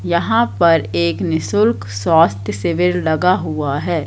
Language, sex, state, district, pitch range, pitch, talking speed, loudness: Hindi, female, Madhya Pradesh, Katni, 110-175 Hz, 160 Hz, 135 wpm, -16 LUFS